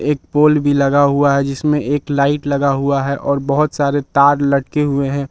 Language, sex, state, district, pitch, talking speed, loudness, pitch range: Hindi, male, Jharkhand, Palamu, 140 Hz, 215 wpm, -15 LUFS, 140-145 Hz